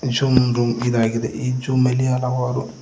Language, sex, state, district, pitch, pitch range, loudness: Kannada, male, Karnataka, Koppal, 125 Hz, 120-130 Hz, -19 LUFS